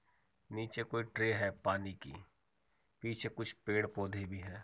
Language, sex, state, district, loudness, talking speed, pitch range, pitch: Hindi, male, Uttar Pradesh, Muzaffarnagar, -39 LUFS, 140 wpm, 95-115 Hz, 105 Hz